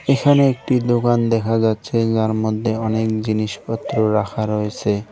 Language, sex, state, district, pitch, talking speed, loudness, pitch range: Bengali, male, West Bengal, Cooch Behar, 110 Hz, 130 wpm, -19 LUFS, 110-120 Hz